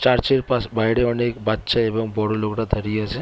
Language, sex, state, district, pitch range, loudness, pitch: Bengali, male, West Bengal, Kolkata, 110-120 Hz, -21 LUFS, 115 Hz